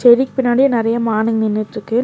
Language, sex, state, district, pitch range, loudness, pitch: Tamil, female, Tamil Nadu, Nilgiris, 220-245 Hz, -16 LUFS, 230 Hz